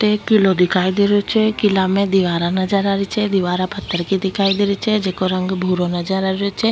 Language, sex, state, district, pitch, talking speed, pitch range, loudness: Rajasthani, female, Rajasthan, Nagaur, 195 Hz, 240 wpm, 185-200 Hz, -17 LUFS